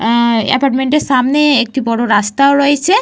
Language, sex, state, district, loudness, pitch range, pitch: Bengali, female, Jharkhand, Jamtara, -12 LUFS, 235-280 Hz, 265 Hz